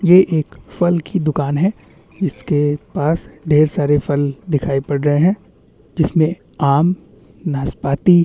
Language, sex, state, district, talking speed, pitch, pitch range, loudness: Hindi, male, Chhattisgarh, Bastar, 140 wpm, 155 Hz, 145-175 Hz, -17 LUFS